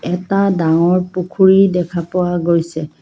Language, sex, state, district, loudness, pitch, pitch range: Assamese, female, Assam, Kamrup Metropolitan, -15 LUFS, 180 Hz, 170-185 Hz